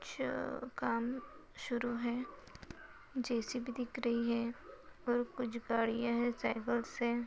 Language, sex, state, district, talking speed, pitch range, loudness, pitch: Hindi, female, Chhattisgarh, Bilaspur, 105 wpm, 235-245 Hz, -38 LUFS, 240 Hz